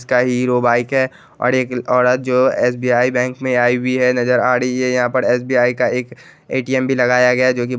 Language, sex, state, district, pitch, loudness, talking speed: Hindi, male, Bihar, Jahanabad, 125 Hz, -16 LUFS, 240 wpm